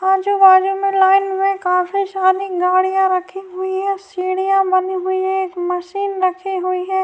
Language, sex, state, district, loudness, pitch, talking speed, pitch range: Urdu, female, Bihar, Saharsa, -17 LUFS, 380 Hz, 160 wpm, 370-390 Hz